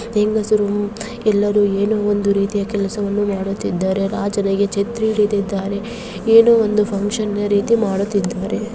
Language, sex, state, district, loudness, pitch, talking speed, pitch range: Kannada, female, Karnataka, Mysore, -18 LUFS, 205 Hz, 110 wpm, 200-215 Hz